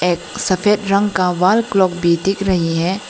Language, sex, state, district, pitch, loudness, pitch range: Hindi, female, Arunachal Pradesh, Lower Dibang Valley, 185 Hz, -16 LUFS, 175-200 Hz